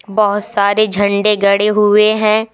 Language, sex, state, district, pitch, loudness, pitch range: Hindi, female, Madhya Pradesh, Umaria, 210 Hz, -13 LUFS, 200-215 Hz